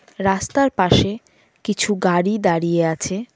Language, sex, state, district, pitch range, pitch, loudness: Bengali, female, West Bengal, Cooch Behar, 175-210 Hz, 195 Hz, -19 LUFS